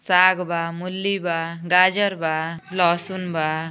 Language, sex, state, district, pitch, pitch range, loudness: Bhojpuri, female, Uttar Pradesh, Gorakhpur, 175 Hz, 165-185 Hz, -21 LUFS